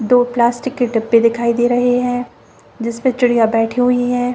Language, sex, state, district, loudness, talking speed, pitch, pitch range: Hindi, female, Jharkhand, Jamtara, -15 LUFS, 195 wpm, 245 Hz, 235-245 Hz